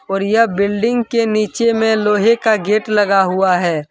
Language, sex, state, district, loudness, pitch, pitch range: Hindi, male, Jharkhand, Deoghar, -15 LUFS, 210 Hz, 195-225 Hz